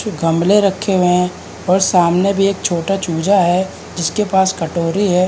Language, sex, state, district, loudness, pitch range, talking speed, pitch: Hindi, male, Uttarakhand, Uttarkashi, -15 LUFS, 175-195 Hz, 180 wpm, 185 Hz